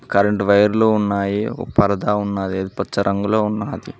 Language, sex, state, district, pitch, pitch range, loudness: Telugu, male, Telangana, Mahabubabad, 100 Hz, 100-105 Hz, -19 LUFS